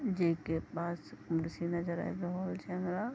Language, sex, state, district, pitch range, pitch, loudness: Maithili, female, Bihar, Vaishali, 165-185 Hz, 170 Hz, -37 LUFS